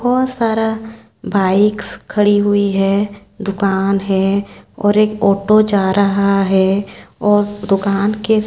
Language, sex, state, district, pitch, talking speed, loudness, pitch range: Hindi, female, Chhattisgarh, Raipur, 205 Hz, 130 wpm, -15 LUFS, 195-215 Hz